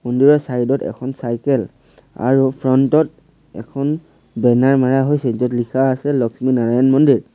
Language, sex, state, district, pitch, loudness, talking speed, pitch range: Assamese, male, Assam, Sonitpur, 130 Hz, -16 LUFS, 140 wpm, 125-140 Hz